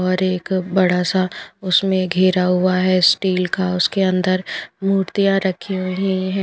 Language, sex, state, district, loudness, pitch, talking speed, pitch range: Hindi, female, Punjab, Pathankot, -18 LUFS, 185 Hz, 150 wpm, 185-190 Hz